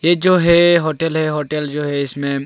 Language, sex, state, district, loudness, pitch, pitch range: Hindi, male, Arunachal Pradesh, Longding, -16 LUFS, 155 Hz, 145-170 Hz